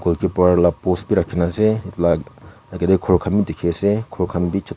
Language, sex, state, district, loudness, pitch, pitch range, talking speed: Nagamese, female, Nagaland, Kohima, -19 LUFS, 90 Hz, 85-100 Hz, 240 wpm